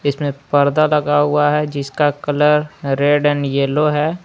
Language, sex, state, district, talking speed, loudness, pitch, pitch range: Hindi, male, Jharkhand, Palamu, 155 wpm, -16 LUFS, 145 Hz, 145-150 Hz